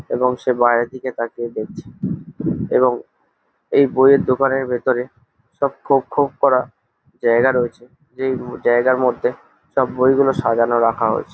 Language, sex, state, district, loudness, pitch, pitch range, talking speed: Bengali, male, West Bengal, Jalpaiguri, -18 LUFS, 125 Hz, 120-130 Hz, 130 wpm